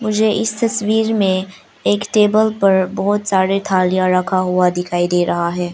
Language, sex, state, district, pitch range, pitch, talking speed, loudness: Hindi, female, Arunachal Pradesh, Lower Dibang Valley, 180-210 Hz, 190 Hz, 165 wpm, -16 LUFS